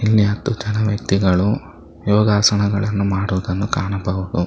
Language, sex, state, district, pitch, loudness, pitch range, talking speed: Kannada, male, Karnataka, Bangalore, 100 Hz, -18 LUFS, 95-105 Hz, 95 wpm